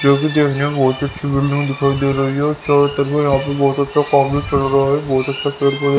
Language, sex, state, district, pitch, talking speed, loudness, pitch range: Hindi, male, Haryana, Rohtak, 140 Hz, 220 wpm, -16 LUFS, 140-145 Hz